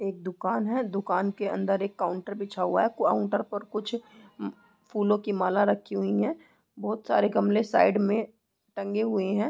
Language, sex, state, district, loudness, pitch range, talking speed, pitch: Hindi, female, Uttarakhand, Tehri Garhwal, -27 LUFS, 190-215 Hz, 175 wpm, 205 Hz